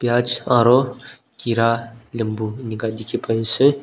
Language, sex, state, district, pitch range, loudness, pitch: Nagamese, male, Nagaland, Dimapur, 115-125 Hz, -20 LUFS, 115 Hz